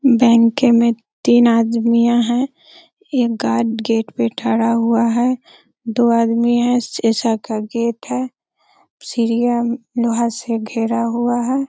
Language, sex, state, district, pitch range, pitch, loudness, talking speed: Hindi, female, Bihar, Darbhanga, 230-245 Hz, 235 Hz, -17 LUFS, 130 wpm